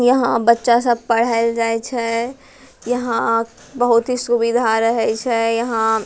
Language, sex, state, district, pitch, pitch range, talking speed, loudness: Angika, female, Bihar, Bhagalpur, 230 Hz, 230-240 Hz, 140 wpm, -17 LUFS